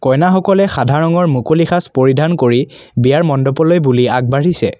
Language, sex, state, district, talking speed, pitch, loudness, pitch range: Assamese, male, Assam, Kamrup Metropolitan, 140 wpm, 145 Hz, -13 LUFS, 130-175 Hz